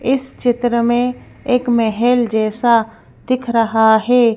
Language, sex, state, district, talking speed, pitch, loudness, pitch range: Hindi, female, Madhya Pradesh, Bhopal, 125 wpm, 240 Hz, -15 LUFS, 225-250 Hz